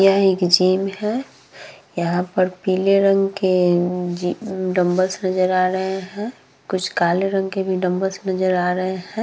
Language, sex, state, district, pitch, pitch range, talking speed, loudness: Hindi, female, Bihar, Vaishali, 185 Hz, 180-195 Hz, 160 wpm, -20 LUFS